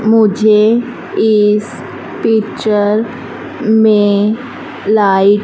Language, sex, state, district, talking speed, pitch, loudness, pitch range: Hindi, female, Madhya Pradesh, Dhar, 65 wpm, 215 Hz, -12 LUFS, 210-225 Hz